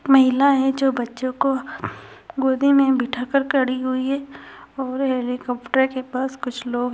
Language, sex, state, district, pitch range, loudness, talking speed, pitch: Hindi, female, Bihar, Saharsa, 255-270 Hz, -21 LUFS, 165 wpm, 265 Hz